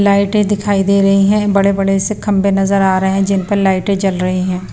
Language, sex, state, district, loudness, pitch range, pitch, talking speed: Hindi, female, Bihar, Patna, -13 LUFS, 195-200 Hz, 195 Hz, 230 wpm